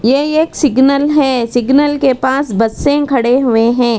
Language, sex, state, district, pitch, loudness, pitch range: Hindi, female, Karnataka, Bangalore, 265 Hz, -12 LUFS, 245-285 Hz